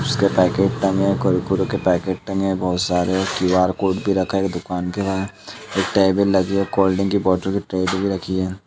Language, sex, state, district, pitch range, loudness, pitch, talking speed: Hindi, male, Uttar Pradesh, Jalaun, 95-100 Hz, -20 LUFS, 95 Hz, 230 wpm